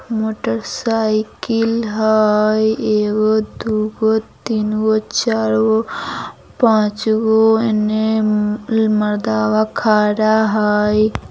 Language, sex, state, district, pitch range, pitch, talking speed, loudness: Bajjika, female, Bihar, Vaishali, 210-220 Hz, 215 Hz, 60 wpm, -16 LUFS